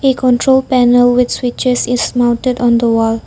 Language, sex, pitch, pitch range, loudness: English, female, 245 Hz, 240-255 Hz, -12 LUFS